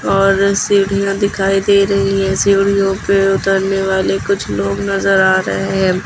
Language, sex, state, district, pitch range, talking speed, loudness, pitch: Hindi, female, Uttar Pradesh, Lucknow, 190-200 Hz, 160 wpm, -14 LUFS, 195 Hz